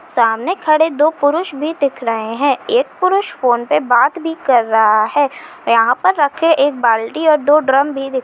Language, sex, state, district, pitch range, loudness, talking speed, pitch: Chhattisgarhi, female, Chhattisgarh, Kabirdham, 240-320 Hz, -14 LUFS, 195 wpm, 280 Hz